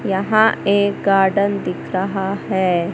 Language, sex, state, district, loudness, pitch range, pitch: Hindi, male, Madhya Pradesh, Katni, -18 LUFS, 190-200 Hz, 195 Hz